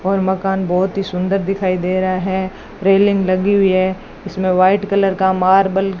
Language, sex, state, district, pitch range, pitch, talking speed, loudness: Hindi, female, Rajasthan, Bikaner, 185-195 Hz, 190 Hz, 190 wpm, -16 LUFS